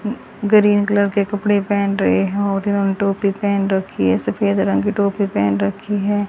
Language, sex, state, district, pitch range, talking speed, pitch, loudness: Hindi, female, Haryana, Rohtak, 195-205 Hz, 180 wpm, 200 Hz, -18 LUFS